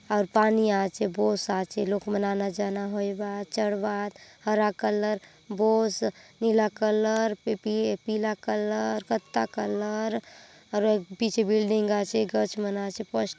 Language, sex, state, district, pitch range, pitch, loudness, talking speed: Halbi, female, Chhattisgarh, Bastar, 200-215 Hz, 210 Hz, -27 LUFS, 145 wpm